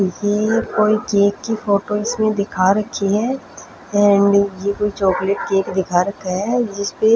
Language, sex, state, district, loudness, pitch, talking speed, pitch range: Hindi, female, Punjab, Fazilka, -18 LUFS, 200 Hz, 160 wpm, 195-215 Hz